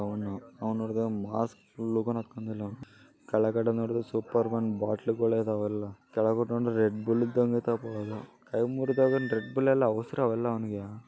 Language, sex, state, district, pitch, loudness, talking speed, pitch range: Kannada, male, Karnataka, Bellary, 115 Hz, -30 LUFS, 80 wpm, 110-115 Hz